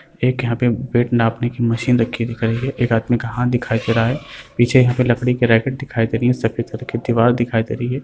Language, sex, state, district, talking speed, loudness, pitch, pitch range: Hindi, male, Uttar Pradesh, Varanasi, 275 wpm, -18 LUFS, 120 Hz, 115-125 Hz